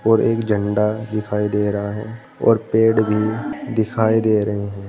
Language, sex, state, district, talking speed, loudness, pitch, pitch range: Hindi, male, Uttar Pradesh, Saharanpur, 170 wpm, -19 LUFS, 110 Hz, 105-110 Hz